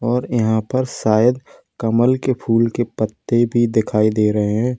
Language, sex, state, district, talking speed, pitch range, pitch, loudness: Hindi, male, Uttar Pradesh, Lalitpur, 175 wpm, 110-125 Hz, 115 Hz, -18 LUFS